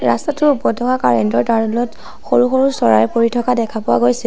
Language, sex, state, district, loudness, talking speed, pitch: Assamese, female, Assam, Sonitpur, -15 LUFS, 210 wpm, 230 Hz